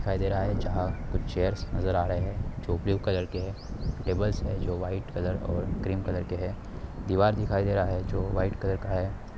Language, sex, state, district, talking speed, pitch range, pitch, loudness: Hindi, male, Bihar, Darbhanga, 235 wpm, 90-100 Hz, 95 Hz, -30 LUFS